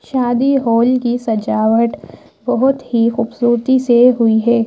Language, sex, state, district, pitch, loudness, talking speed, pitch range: Hindi, female, Madhya Pradesh, Bhopal, 240 Hz, -14 LUFS, 130 wpm, 230-255 Hz